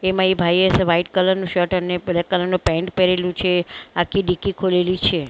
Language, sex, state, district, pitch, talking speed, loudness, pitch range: Gujarati, female, Maharashtra, Mumbai Suburban, 180 Hz, 205 wpm, -19 LUFS, 175-185 Hz